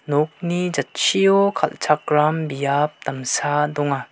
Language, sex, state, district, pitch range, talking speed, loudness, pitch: Garo, male, Meghalaya, West Garo Hills, 145-170 Hz, 85 wpm, -20 LUFS, 150 Hz